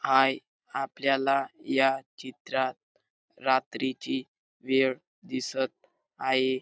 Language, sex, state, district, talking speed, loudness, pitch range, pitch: Marathi, male, Maharashtra, Dhule, 70 wpm, -28 LUFS, 130-135 Hz, 130 Hz